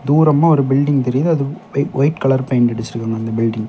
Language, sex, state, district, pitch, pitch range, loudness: Tamil, male, Tamil Nadu, Kanyakumari, 135 Hz, 115-145 Hz, -16 LUFS